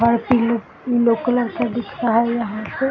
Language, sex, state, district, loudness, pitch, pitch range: Hindi, male, Bihar, East Champaran, -20 LUFS, 235 Hz, 230-240 Hz